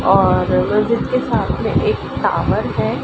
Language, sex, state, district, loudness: Hindi, female, Uttar Pradesh, Ghazipur, -17 LUFS